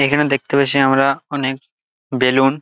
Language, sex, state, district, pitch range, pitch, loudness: Bengali, male, West Bengal, Jalpaiguri, 135-140 Hz, 135 Hz, -16 LUFS